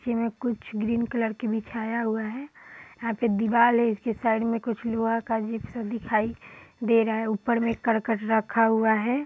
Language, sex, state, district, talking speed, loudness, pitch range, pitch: Hindi, female, Bihar, Sitamarhi, 195 wpm, -26 LUFS, 220-235 Hz, 230 Hz